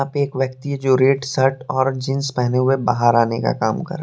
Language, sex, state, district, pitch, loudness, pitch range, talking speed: Hindi, male, Jharkhand, Deoghar, 130 Hz, -19 LUFS, 125-135 Hz, 225 wpm